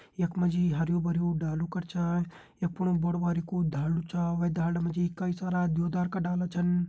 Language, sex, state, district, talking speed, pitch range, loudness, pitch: Hindi, male, Uttarakhand, Uttarkashi, 200 wpm, 170-180 Hz, -30 LUFS, 175 Hz